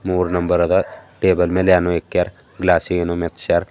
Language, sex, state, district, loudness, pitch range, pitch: Kannada, male, Karnataka, Bidar, -18 LUFS, 85-90 Hz, 90 Hz